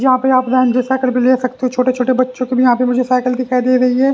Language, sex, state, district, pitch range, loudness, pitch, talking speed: Hindi, male, Haryana, Jhajjar, 250-255 Hz, -14 LUFS, 255 Hz, 305 wpm